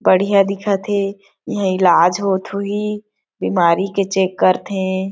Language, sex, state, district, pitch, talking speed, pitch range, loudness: Chhattisgarhi, female, Chhattisgarh, Sarguja, 195 Hz, 140 wpm, 190-200 Hz, -17 LUFS